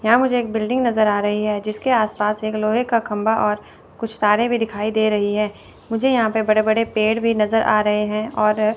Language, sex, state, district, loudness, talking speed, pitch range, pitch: Hindi, female, Chandigarh, Chandigarh, -19 LUFS, 235 wpm, 210-225 Hz, 215 Hz